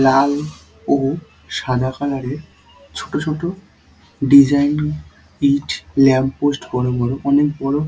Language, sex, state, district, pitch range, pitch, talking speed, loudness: Bengali, male, West Bengal, Dakshin Dinajpur, 130-145 Hz, 140 Hz, 115 wpm, -18 LUFS